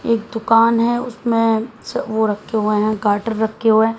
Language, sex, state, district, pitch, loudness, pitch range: Hindi, female, Haryana, Jhajjar, 225 Hz, -18 LUFS, 220-230 Hz